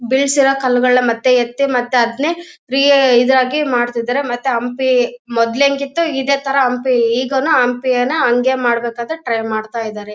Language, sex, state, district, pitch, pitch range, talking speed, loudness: Kannada, female, Karnataka, Bellary, 250 Hz, 240-275 Hz, 140 wpm, -15 LUFS